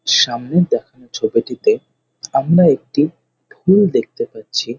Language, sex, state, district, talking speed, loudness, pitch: Bengali, male, West Bengal, North 24 Parganas, 115 wpm, -16 LUFS, 170 Hz